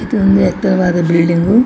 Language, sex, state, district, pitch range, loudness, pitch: Kannada, female, Karnataka, Dakshina Kannada, 175-205 Hz, -12 LUFS, 190 Hz